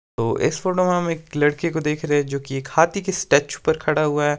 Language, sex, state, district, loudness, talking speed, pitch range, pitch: Hindi, male, Himachal Pradesh, Shimla, -21 LUFS, 300 wpm, 145-170 Hz, 155 Hz